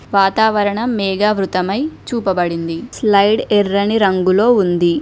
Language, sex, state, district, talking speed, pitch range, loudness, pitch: Telugu, female, Telangana, Mahabubabad, 85 wpm, 185-215 Hz, -15 LUFS, 200 Hz